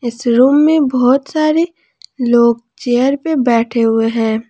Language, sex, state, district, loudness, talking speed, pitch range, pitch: Hindi, female, Jharkhand, Ranchi, -13 LUFS, 145 wpm, 235-280 Hz, 245 Hz